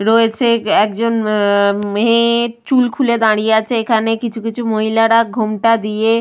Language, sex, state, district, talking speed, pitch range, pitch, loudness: Bengali, female, West Bengal, Purulia, 145 wpm, 215-230 Hz, 225 Hz, -14 LUFS